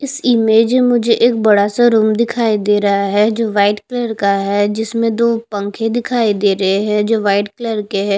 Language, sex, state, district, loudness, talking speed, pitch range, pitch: Hindi, female, Chhattisgarh, Bastar, -14 LUFS, 205 wpm, 205-235 Hz, 220 Hz